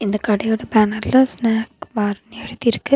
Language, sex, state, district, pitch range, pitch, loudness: Tamil, female, Tamil Nadu, Nilgiris, 210-230 Hz, 220 Hz, -19 LUFS